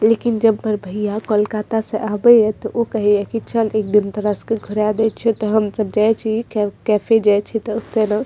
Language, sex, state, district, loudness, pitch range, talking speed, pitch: Maithili, female, Bihar, Madhepura, -18 LUFS, 210-225 Hz, 245 wpm, 215 Hz